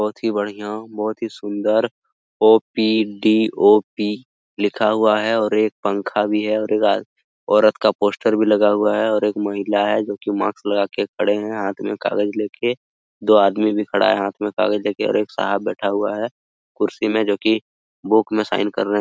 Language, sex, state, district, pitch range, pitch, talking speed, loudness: Hindi, male, Uttar Pradesh, Hamirpur, 105-110 Hz, 105 Hz, 185 wpm, -19 LUFS